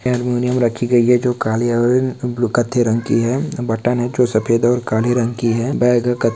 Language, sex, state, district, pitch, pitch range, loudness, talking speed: Hindi, male, Uttarakhand, Uttarkashi, 120 Hz, 115-125 Hz, -17 LUFS, 215 wpm